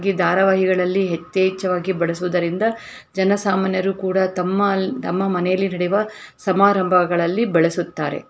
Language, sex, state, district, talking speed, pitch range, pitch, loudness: Kannada, female, Karnataka, Dharwad, 85 wpm, 180-195 Hz, 190 Hz, -19 LUFS